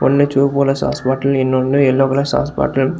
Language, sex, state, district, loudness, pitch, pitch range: Tamil, male, Tamil Nadu, Kanyakumari, -15 LUFS, 135 Hz, 135-140 Hz